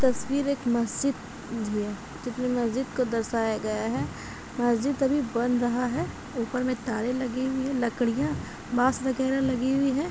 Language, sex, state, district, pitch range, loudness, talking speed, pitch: Hindi, female, Bihar, East Champaran, 235-265 Hz, -28 LUFS, 165 wpm, 250 Hz